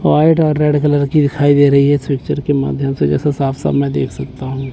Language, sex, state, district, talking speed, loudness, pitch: Hindi, male, Chandigarh, Chandigarh, 255 wpm, -14 LUFS, 140 Hz